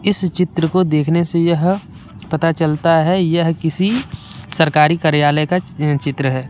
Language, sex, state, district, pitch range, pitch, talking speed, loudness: Hindi, male, Jharkhand, Deoghar, 150-175 Hz, 165 Hz, 150 wpm, -16 LUFS